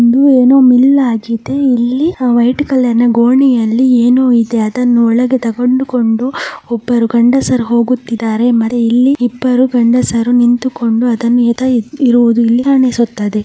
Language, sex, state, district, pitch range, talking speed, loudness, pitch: Kannada, male, Karnataka, Mysore, 235-255 Hz, 110 wpm, -11 LUFS, 245 Hz